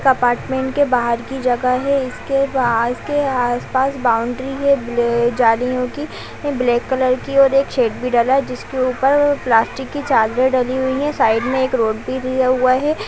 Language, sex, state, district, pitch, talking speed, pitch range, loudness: Hindi, female, Bihar, Bhagalpur, 255 Hz, 190 wpm, 245-270 Hz, -17 LUFS